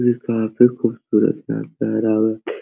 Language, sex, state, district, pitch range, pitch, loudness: Hindi, male, Uttar Pradesh, Hamirpur, 110-120 Hz, 110 Hz, -19 LUFS